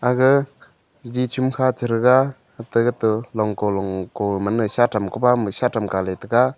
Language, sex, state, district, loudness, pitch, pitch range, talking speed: Wancho, male, Arunachal Pradesh, Longding, -20 LUFS, 120 Hz, 105-125 Hz, 175 wpm